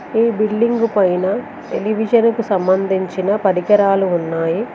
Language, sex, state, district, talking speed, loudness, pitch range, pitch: Telugu, female, Telangana, Mahabubabad, 100 wpm, -16 LUFS, 185-230 Hz, 200 Hz